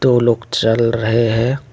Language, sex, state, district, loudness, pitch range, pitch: Hindi, male, Tripura, West Tripura, -16 LUFS, 115-125 Hz, 115 Hz